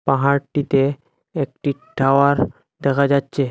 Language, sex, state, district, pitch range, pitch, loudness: Bengali, male, Assam, Hailakandi, 135-140 Hz, 140 Hz, -19 LUFS